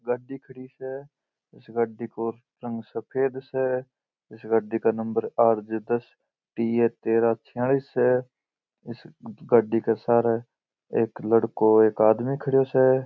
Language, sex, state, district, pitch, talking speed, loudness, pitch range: Marwari, male, Rajasthan, Churu, 120 Hz, 155 wpm, -24 LUFS, 115-130 Hz